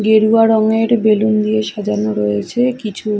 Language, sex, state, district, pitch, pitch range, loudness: Bengali, female, Odisha, Khordha, 215 Hz, 210-220 Hz, -15 LUFS